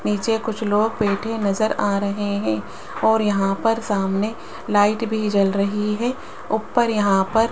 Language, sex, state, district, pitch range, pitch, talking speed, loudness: Hindi, female, Rajasthan, Jaipur, 200-225 Hz, 210 Hz, 170 wpm, -21 LUFS